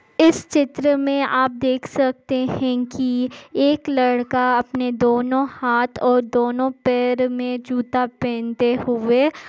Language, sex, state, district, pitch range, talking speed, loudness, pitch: Hindi, female, Maharashtra, Solapur, 245-265 Hz, 125 wpm, -20 LUFS, 250 Hz